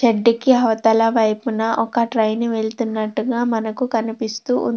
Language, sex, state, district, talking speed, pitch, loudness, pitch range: Telugu, female, Andhra Pradesh, Anantapur, 115 wpm, 225 Hz, -19 LUFS, 220-235 Hz